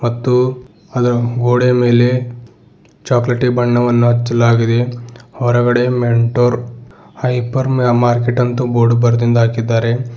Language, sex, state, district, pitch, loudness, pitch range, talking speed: Kannada, male, Karnataka, Bidar, 120 Hz, -14 LUFS, 120-125 Hz, 90 wpm